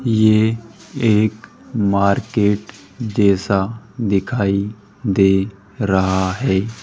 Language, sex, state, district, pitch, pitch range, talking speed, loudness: Hindi, male, Rajasthan, Jaipur, 105 Hz, 100-110 Hz, 70 wpm, -18 LUFS